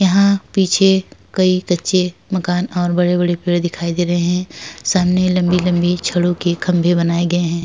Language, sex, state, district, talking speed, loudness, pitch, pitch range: Hindi, female, Uttar Pradesh, Etah, 165 wpm, -16 LUFS, 180 Hz, 175-185 Hz